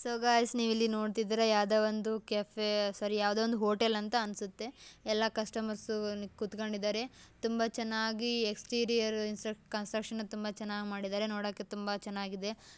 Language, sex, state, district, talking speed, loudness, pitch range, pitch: Kannada, female, Karnataka, Dakshina Kannada, 120 wpm, -34 LUFS, 210-225 Hz, 215 Hz